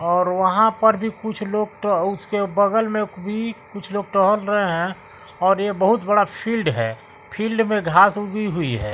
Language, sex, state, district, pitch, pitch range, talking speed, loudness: Hindi, male, Bihar, West Champaran, 205 Hz, 185-215 Hz, 190 wpm, -20 LUFS